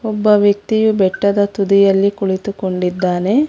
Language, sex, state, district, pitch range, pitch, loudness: Kannada, female, Karnataka, Bangalore, 190-210 Hz, 200 Hz, -15 LUFS